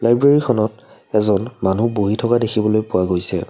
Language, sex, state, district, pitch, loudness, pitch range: Assamese, male, Assam, Kamrup Metropolitan, 110 Hz, -18 LUFS, 100-115 Hz